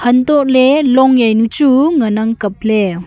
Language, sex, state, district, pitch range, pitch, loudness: Wancho, female, Arunachal Pradesh, Longding, 220-265 Hz, 245 Hz, -11 LUFS